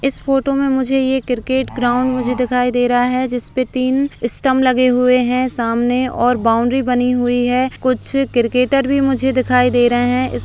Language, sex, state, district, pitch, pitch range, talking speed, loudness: Hindi, female, Bihar, Begusarai, 255 Hz, 245-265 Hz, 200 wpm, -16 LUFS